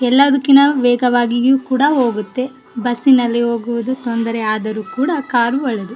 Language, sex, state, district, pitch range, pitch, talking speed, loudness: Kannada, female, Karnataka, Bellary, 235-265 Hz, 245 Hz, 130 wpm, -15 LUFS